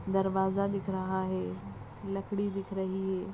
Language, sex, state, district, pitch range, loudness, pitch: Hindi, female, Maharashtra, Aurangabad, 185-195 Hz, -33 LUFS, 190 Hz